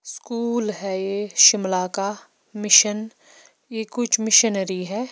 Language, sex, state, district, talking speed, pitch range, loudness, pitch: Hindi, female, Himachal Pradesh, Shimla, 115 wpm, 195-225 Hz, -19 LUFS, 210 Hz